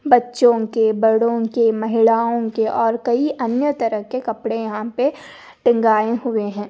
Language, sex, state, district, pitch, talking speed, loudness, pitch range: Hindi, female, Rajasthan, Nagaur, 230 Hz, 150 wpm, -18 LUFS, 220-240 Hz